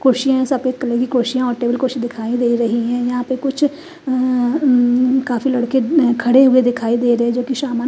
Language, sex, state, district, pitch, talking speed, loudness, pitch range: Hindi, female, Chandigarh, Chandigarh, 250 Hz, 235 wpm, -16 LUFS, 240-265 Hz